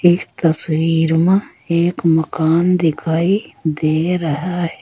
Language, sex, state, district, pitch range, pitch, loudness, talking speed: Hindi, female, Uttar Pradesh, Saharanpur, 160-175 Hz, 165 Hz, -16 LUFS, 110 wpm